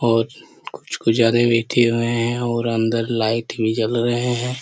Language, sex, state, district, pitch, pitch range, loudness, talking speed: Hindi, male, Chhattisgarh, Korba, 115 Hz, 115-120 Hz, -19 LUFS, 155 wpm